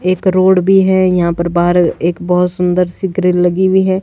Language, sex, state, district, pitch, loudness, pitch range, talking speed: Hindi, female, Himachal Pradesh, Shimla, 180 Hz, -12 LUFS, 175-190 Hz, 210 wpm